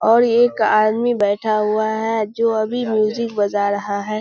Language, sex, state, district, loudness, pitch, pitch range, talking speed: Hindi, male, Bihar, Kishanganj, -18 LUFS, 215 Hz, 210-230 Hz, 170 wpm